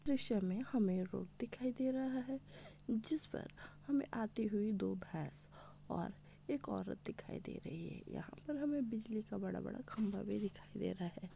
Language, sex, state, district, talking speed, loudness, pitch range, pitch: Hindi, female, Andhra Pradesh, Visakhapatnam, 185 wpm, -42 LUFS, 200-260 Hz, 220 Hz